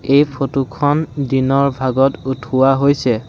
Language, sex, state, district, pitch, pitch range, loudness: Assamese, male, Assam, Sonitpur, 135 Hz, 130-140 Hz, -16 LUFS